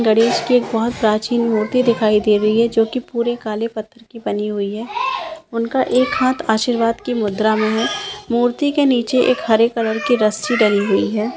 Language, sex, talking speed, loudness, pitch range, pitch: Maithili, female, 195 wpm, -17 LUFS, 220-250 Hz, 230 Hz